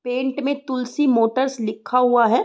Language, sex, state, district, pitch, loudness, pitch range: Hindi, female, Uttar Pradesh, Gorakhpur, 250 Hz, -20 LUFS, 240-265 Hz